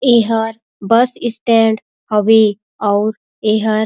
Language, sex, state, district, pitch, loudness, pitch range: Surgujia, female, Chhattisgarh, Sarguja, 220 Hz, -15 LUFS, 215-230 Hz